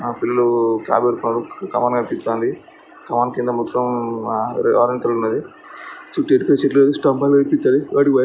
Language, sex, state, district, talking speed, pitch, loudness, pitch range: Telugu, male, Andhra Pradesh, Srikakulam, 85 wpm, 125 Hz, -18 LUFS, 120-140 Hz